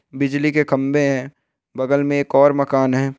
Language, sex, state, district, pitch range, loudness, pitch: Hindi, male, Bihar, Bhagalpur, 135-145 Hz, -18 LUFS, 140 Hz